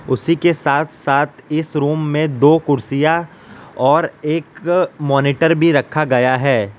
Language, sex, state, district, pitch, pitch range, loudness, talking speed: Hindi, male, Gujarat, Valsad, 150 Hz, 140-160 Hz, -16 LUFS, 140 wpm